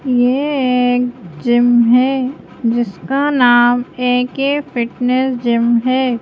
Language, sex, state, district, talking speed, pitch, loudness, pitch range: Hindi, female, Madhya Pradesh, Bhopal, 95 wpm, 250 Hz, -15 LUFS, 240-260 Hz